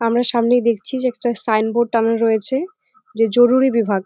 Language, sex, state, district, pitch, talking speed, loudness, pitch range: Bengali, female, West Bengal, Jalpaiguri, 235 Hz, 180 wpm, -16 LUFS, 225-255 Hz